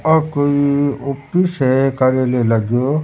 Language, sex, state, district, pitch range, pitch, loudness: Rajasthani, male, Rajasthan, Churu, 130-145 Hz, 140 Hz, -16 LUFS